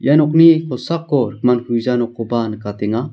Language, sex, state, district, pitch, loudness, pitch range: Garo, male, Meghalaya, South Garo Hills, 125 Hz, -16 LUFS, 115-150 Hz